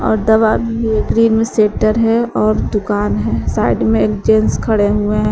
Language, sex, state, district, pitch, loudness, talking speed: Hindi, female, Uttar Pradesh, Shamli, 210 Hz, -14 LUFS, 170 wpm